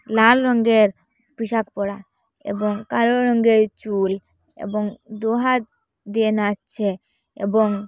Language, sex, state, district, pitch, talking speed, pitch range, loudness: Bengali, female, Assam, Hailakandi, 220 Hz, 105 wpm, 205-230 Hz, -20 LUFS